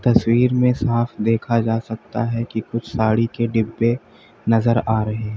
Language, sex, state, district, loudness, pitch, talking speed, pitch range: Hindi, male, Uttar Pradesh, Lalitpur, -20 LUFS, 115 Hz, 180 wpm, 110-120 Hz